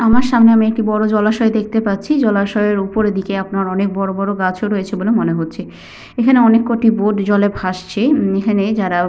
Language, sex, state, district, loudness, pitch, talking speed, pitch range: Bengali, female, West Bengal, Paschim Medinipur, -15 LUFS, 210 Hz, 190 wpm, 195-225 Hz